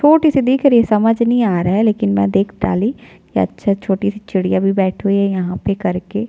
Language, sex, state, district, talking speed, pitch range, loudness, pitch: Hindi, female, Chhattisgarh, Jashpur, 265 wpm, 185-230 Hz, -16 LUFS, 200 Hz